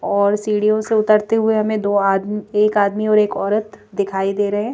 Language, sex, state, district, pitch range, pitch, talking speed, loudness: Hindi, female, Madhya Pradesh, Bhopal, 200-215 Hz, 210 Hz, 215 wpm, -17 LUFS